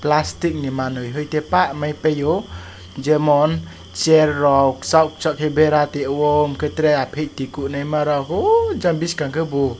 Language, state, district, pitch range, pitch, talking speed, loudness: Kokborok, Tripura, West Tripura, 135-155 Hz, 150 Hz, 140 wpm, -19 LUFS